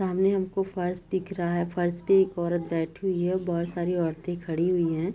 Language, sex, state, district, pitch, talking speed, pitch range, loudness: Hindi, female, Bihar, Gopalganj, 175 Hz, 220 wpm, 170-190 Hz, -27 LUFS